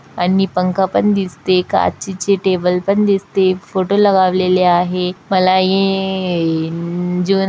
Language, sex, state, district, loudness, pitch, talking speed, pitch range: Marathi, female, Maharashtra, Chandrapur, -15 LUFS, 185 Hz, 105 wpm, 180-195 Hz